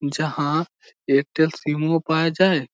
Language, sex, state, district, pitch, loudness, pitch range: Bengali, male, West Bengal, Malda, 155 Hz, -21 LUFS, 145-160 Hz